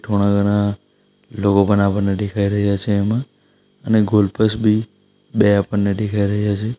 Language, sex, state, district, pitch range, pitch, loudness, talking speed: Gujarati, male, Gujarat, Valsad, 100-110 Hz, 105 Hz, -18 LUFS, 140 wpm